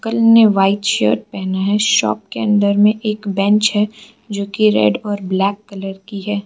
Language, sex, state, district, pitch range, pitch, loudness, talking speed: Hindi, female, Arunachal Pradesh, Lower Dibang Valley, 195-215 Hz, 205 Hz, -15 LUFS, 175 wpm